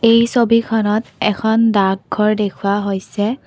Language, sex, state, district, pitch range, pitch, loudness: Assamese, female, Assam, Kamrup Metropolitan, 200-230 Hz, 210 Hz, -16 LUFS